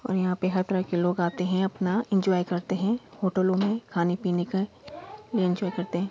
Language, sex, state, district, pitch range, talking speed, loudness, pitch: Hindi, female, Uttar Pradesh, Budaun, 180-195 Hz, 195 wpm, -27 LUFS, 185 Hz